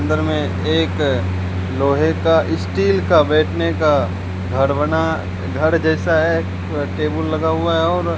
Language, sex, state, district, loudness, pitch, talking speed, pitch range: Hindi, male, Rajasthan, Bikaner, -18 LUFS, 90 Hz, 145 wpm, 80-95 Hz